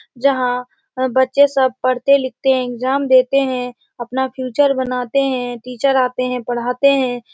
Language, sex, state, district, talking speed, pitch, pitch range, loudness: Hindi, female, Uttar Pradesh, Etah, 140 wpm, 255 Hz, 250-270 Hz, -17 LUFS